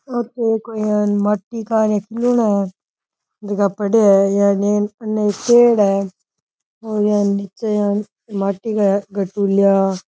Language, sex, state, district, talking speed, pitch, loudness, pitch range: Rajasthani, male, Rajasthan, Nagaur, 35 wpm, 205 Hz, -17 LUFS, 200-220 Hz